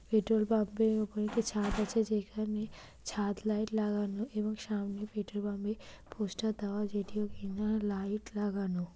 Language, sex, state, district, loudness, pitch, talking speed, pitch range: Bengali, female, West Bengal, Dakshin Dinajpur, -35 LUFS, 210 Hz, 145 wpm, 205-215 Hz